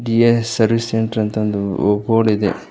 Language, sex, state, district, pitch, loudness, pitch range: Kannada, male, Karnataka, Koppal, 110 Hz, -17 LUFS, 105-115 Hz